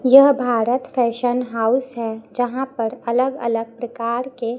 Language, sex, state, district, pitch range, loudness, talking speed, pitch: Hindi, female, Chhattisgarh, Raipur, 230-255 Hz, -20 LUFS, 145 wpm, 245 Hz